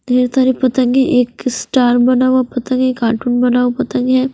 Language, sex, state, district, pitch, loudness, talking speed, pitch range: Hindi, female, Punjab, Fazilka, 255 Hz, -14 LUFS, 205 wpm, 245-255 Hz